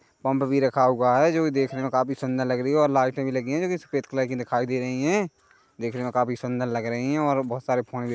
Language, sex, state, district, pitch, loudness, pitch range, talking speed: Hindi, male, Chhattisgarh, Korba, 130 Hz, -25 LUFS, 125-135 Hz, 285 wpm